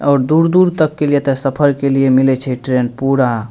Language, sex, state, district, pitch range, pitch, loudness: Maithili, male, Bihar, Madhepura, 130-145 Hz, 135 Hz, -14 LUFS